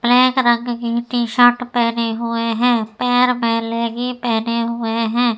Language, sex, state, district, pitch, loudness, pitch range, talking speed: Hindi, female, Uttar Pradesh, Etah, 235 Hz, -17 LUFS, 230-245 Hz, 145 wpm